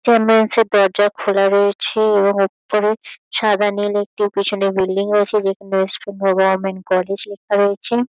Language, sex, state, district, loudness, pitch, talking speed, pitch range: Bengali, female, West Bengal, Kolkata, -17 LUFS, 200 Hz, 140 wpm, 195-210 Hz